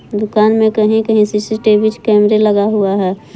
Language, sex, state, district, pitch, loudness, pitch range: Hindi, female, Jharkhand, Palamu, 215 Hz, -12 LUFS, 210-220 Hz